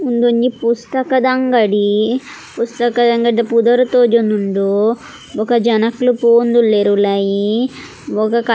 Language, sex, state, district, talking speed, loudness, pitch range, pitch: Tulu, female, Karnataka, Dakshina Kannada, 90 wpm, -14 LUFS, 215-245 Hz, 235 Hz